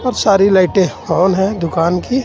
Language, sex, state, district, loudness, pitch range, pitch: Hindi, male, Jharkhand, Ranchi, -14 LUFS, 175-200 Hz, 190 Hz